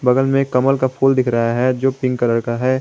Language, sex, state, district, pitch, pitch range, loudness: Hindi, male, Jharkhand, Garhwa, 130 Hz, 125-135 Hz, -17 LUFS